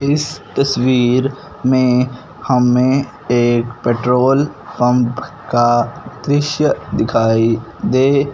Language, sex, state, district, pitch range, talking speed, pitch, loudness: Hindi, male, Punjab, Fazilka, 120-135 Hz, 80 wpm, 125 Hz, -15 LUFS